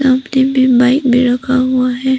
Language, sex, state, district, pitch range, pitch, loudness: Hindi, female, Arunachal Pradesh, Papum Pare, 250-265 Hz, 255 Hz, -12 LUFS